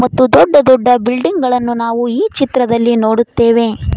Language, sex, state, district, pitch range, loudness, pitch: Kannada, female, Karnataka, Koppal, 235-255 Hz, -12 LUFS, 240 Hz